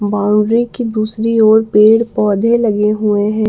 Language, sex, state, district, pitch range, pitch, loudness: Hindi, female, Jharkhand, Palamu, 210-225 Hz, 215 Hz, -13 LUFS